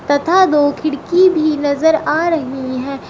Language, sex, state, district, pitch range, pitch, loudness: Hindi, female, Uttar Pradesh, Shamli, 285-325 Hz, 300 Hz, -15 LUFS